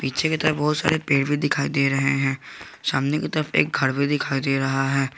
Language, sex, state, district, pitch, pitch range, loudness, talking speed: Hindi, male, Jharkhand, Garhwa, 140 Hz, 135-150 Hz, -22 LUFS, 230 wpm